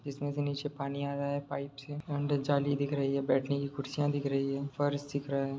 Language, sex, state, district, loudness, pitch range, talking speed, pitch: Hindi, male, Jharkhand, Jamtara, -33 LUFS, 140-145 Hz, 270 wpm, 140 Hz